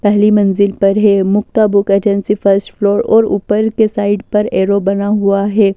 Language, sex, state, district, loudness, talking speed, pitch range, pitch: Hindi, female, Delhi, New Delhi, -12 LUFS, 185 wpm, 200-210 Hz, 205 Hz